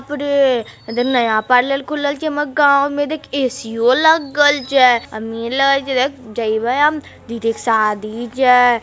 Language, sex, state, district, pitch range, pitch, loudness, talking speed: Magahi, female, Bihar, Jamui, 230-285 Hz, 260 Hz, -16 LUFS, 145 wpm